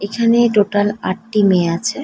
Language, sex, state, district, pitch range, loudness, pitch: Bengali, female, West Bengal, North 24 Parganas, 195-225 Hz, -15 LUFS, 205 Hz